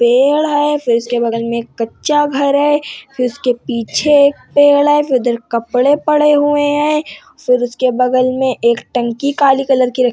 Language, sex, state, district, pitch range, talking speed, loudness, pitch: Hindi, female, Uttar Pradesh, Hamirpur, 240-290 Hz, 185 wpm, -14 LUFS, 260 Hz